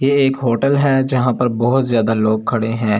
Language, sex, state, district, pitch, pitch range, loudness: Hindi, male, Delhi, New Delhi, 125 Hz, 115-135 Hz, -16 LUFS